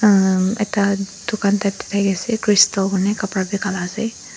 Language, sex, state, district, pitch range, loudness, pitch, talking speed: Nagamese, female, Nagaland, Dimapur, 195-210 Hz, -19 LUFS, 200 Hz, 135 wpm